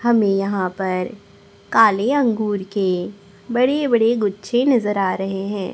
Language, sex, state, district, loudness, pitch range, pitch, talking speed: Hindi, female, Chhattisgarh, Raipur, -19 LUFS, 195-235 Hz, 205 Hz, 135 wpm